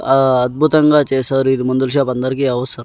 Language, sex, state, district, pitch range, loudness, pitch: Telugu, male, Andhra Pradesh, Annamaya, 130-140 Hz, -15 LUFS, 130 Hz